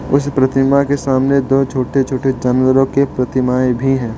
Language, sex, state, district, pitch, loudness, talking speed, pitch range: Hindi, male, Arunachal Pradesh, Lower Dibang Valley, 135 Hz, -15 LUFS, 170 wpm, 130-135 Hz